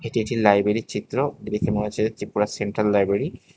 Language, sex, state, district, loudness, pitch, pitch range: Bengali, male, Tripura, West Tripura, -23 LUFS, 105 Hz, 105-110 Hz